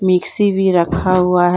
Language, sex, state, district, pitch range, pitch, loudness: Hindi, female, Jharkhand, Deoghar, 180-190 Hz, 185 Hz, -15 LUFS